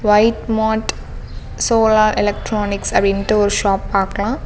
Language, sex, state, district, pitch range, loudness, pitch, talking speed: Tamil, female, Tamil Nadu, Namakkal, 200-220 Hz, -16 LUFS, 210 Hz, 110 wpm